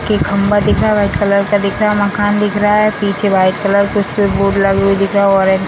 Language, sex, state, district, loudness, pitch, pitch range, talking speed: Hindi, female, Bihar, Sitamarhi, -13 LUFS, 200 Hz, 195-205 Hz, 295 wpm